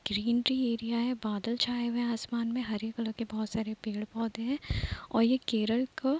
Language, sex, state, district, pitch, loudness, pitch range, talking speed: Hindi, female, Uttar Pradesh, Deoria, 230 Hz, -32 LUFS, 220-245 Hz, 205 wpm